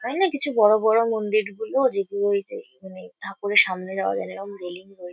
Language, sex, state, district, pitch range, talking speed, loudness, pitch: Bengali, female, West Bengal, Kolkata, 190-285 Hz, 220 wpm, -22 LUFS, 215 Hz